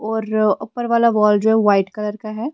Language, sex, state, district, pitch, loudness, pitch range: Hindi, female, Himachal Pradesh, Shimla, 215 Hz, -17 LUFS, 210-225 Hz